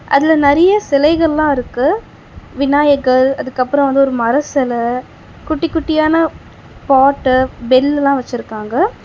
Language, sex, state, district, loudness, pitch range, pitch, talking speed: Tamil, female, Tamil Nadu, Chennai, -14 LUFS, 255-310 Hz, 280 Hz, 115 wpm